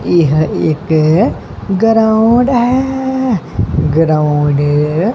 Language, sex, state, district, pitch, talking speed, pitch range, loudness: Punjabi, male, Punjab, Kapurthala, 170 Hz, 70 wpm, 155-235 Hz, -12 LUFS